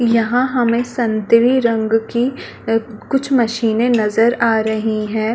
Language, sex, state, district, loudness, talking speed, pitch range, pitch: Hindi, female, Chhattisgarh, Balrampur, -16 LUFS, 125 wpm, 220-240 Hz, 230 Hz